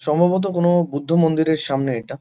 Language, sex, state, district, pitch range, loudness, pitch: Bengali, male, West Bengal, Kolkata, 145-175 Hz, -19 LUFS, 160 Hz